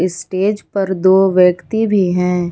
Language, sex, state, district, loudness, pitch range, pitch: Hindi, female, Jharkhand, Garhwa, -14 LUFS, 180-195 Hz, 190 Hz